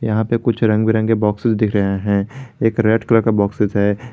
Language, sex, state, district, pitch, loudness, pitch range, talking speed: Hindi, male, Jharkhand, Garhwa, 110 Hz, -17 LUFS, 105-115 Hz, 215 wpm